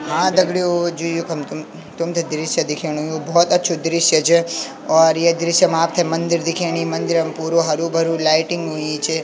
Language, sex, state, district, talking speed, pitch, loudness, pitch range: Garhwali, male, Uttarakhand, Tehri Garhwal, 180 wpm, 165 Hz, -18 LUFS, 160-170 Hz